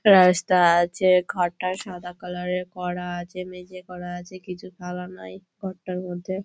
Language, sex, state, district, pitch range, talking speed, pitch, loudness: Bengali, female, West Bengal, Malda, 180-185 Hz, 160 wpm, 180 Hz, -24 LUFS